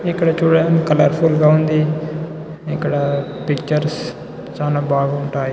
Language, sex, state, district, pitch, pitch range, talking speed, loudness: Telugu, male, Telangana, Nalgonda, 155 Hz, 145-160 Hz, 110 wpm, -17 LUFS